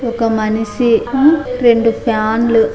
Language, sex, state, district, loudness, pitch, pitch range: Telugu, female, Andhra Pradesh, Anantapur, -14 LUFS, 230 Hz, 220-240 Hz